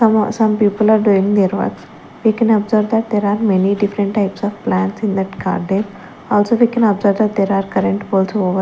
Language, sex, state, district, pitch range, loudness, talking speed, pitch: English, female, Chandigarh, Chandigarh, 195-215 Hz, -16 LUFS, 215 wpm, 205 Hz